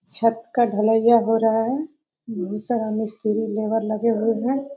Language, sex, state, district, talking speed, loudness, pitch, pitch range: Hindi, female, Bihar, Muzaffarpur, 165 wpm, -21 LUFS, 225 Hz, 215-235 Hz